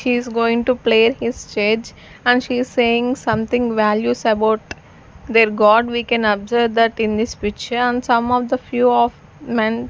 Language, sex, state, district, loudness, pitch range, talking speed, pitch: English, female, Chandigarh, Chandigarh, -17 LUFS, 220-245 Hz, 180 wpm, 235 Hz